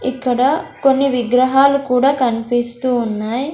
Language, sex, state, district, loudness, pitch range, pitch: Telugu, female, Andhra Pradesh, Sri Satya Sai, -16 LUFS, 245-270 Hz, 255 Hz